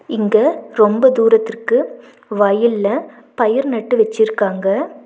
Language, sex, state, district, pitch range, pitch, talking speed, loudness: Tamil, female, Tamil Nadu, Nilgiris, 210-240 Hz, 225 Hz, 85 wpm, -15 LUFS